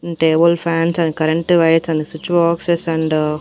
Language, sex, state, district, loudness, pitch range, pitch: Telugu, female, Andhra Pradesh, Annamaya, -16 LUFS, 160-170 Hz, 165 Hz